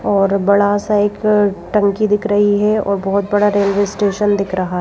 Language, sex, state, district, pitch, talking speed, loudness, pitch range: Hindi, female, Madhya Pradesh, Bhopal, 205 Hz, 200 wpm, -15 LUFS, 200-205 Hz